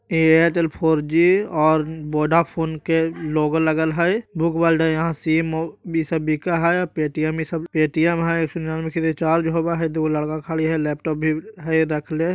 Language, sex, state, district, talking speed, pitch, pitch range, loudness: Magahi, male, Bihar, Jahanabad, 160 wpm, 160 Hz, 155-165 Hz, -20 LUFS